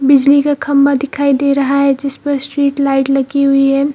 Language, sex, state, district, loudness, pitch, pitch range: Hindi, female, Bihar, Purnia, -13 LUFS, 280 Hz, 275-280 Hz